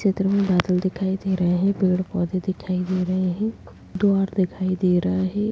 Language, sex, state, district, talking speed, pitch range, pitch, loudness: Kumaoni, female, Uttarakhand, Tehri Garhwal, 195 wpm, 185-195 Hz, 185 Hz, -22 LUFS